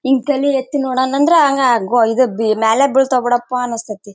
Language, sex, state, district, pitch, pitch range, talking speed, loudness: Kannada, female, Karnataka, Bellary, 255 Hz, 230-275 Hz, 200 wpm, -15 LUFS